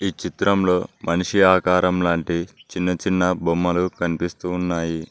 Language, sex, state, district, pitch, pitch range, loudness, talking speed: Telugu, male, Telangana, Mahabubabad, 90 Hz, 85-90 Hz, -21 LUFS, 115 wpm